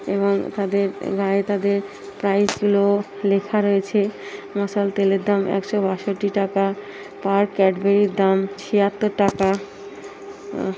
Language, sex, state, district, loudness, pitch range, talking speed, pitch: Bengali, female, West Bengal, North 24 Parganas, -21 LUFS, 195-205 Hz, 115 wpm, 200 Hz